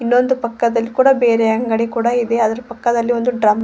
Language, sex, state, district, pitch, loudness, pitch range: Kannada, female, Karnataka, Koppal, 235 Hz, -16 LUFS, 230-245 Hz